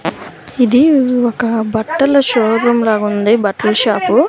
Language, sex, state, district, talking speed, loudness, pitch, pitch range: Telugu, female, Andhra Pradesh, Manyam, 110 wpm, -13 LUFS, 230 Hz, 220-250 Hz